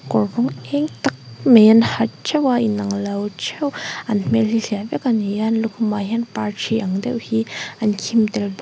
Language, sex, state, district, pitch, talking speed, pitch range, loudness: Mizo, female, Mizoram, Aizawl, 220 Hz, 215 wpm, 205-230 Hz, -19 LUFS